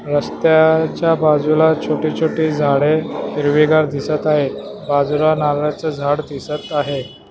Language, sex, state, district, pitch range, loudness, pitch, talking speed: Marathi, male, Maharashtra, Mumbai Suburban, 145-155 Hz, -16 LUFS, 150 Hz, 105 wpm